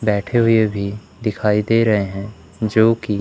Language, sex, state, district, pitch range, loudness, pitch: Hindi, male, Madhya Pradesh, Umaria, 100-110 Hz, -18 LUFS, 105 Hz